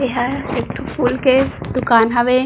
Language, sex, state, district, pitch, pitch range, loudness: Chhattisgarhi, female, Chhattisgarh, Bilaspur, 255 Hz, 245-260 Hz, -17 LUFS